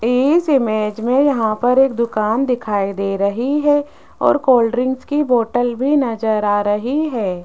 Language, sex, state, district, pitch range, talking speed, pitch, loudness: Hindi, female, Rajasthan, Jaipur, 215-270 Hz, 170 wpm, 245 Hz, -17 LUFS